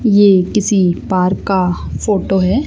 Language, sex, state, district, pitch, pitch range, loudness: Hindi, female, Haryana, Charkhi Dadri, 190 Hz, 185-205 Hz, -14 LUFS